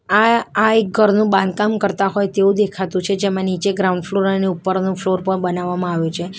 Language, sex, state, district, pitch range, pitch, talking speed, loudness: Gujarati, female, Gujarat, Valsad, 185-200 Hz, 195 Hz, 195 wpm, -17 LUFS